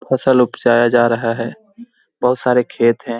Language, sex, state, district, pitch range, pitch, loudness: Hindi, male, Bihar, Jamui, 115-130 Hz, 120 Hz, -15 LUFS